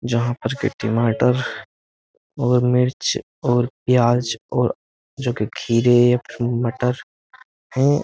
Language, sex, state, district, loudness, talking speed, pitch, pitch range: Hindi, male, Uttar Pradesh, Jyotiba Phule Nagar, -20 LUFS, 125 wpm, 120 Hz, 115-125 Hz